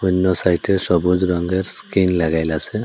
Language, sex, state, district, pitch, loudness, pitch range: Bengali, male, Assam, Hailakandi, 90 Hz, -18 LUFS, 85-95 Hz